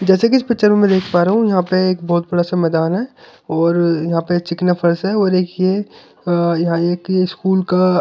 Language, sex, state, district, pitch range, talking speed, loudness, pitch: Hindi, male, Delhi, New Delhi, 170-190 Hz, 240 wpm, -16 LUFS, 180 Hz